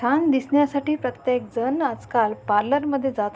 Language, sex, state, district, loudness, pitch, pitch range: Marathi, female, Maharashtra, Sindhudurg, -22 LUFS, 260 Hz, 235-285 Hz